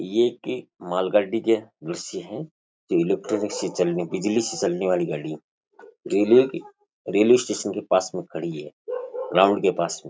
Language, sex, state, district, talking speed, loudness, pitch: Rajasthani, male, Rajasthan, Churu, 160 wpm, -23 LUFS, 120 Hz